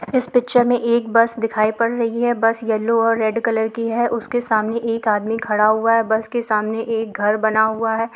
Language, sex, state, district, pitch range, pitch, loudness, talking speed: Hindi, female, Bihar, Saran, 220-235 Hz, 225 Hz, -18 LUFS, 255 wpm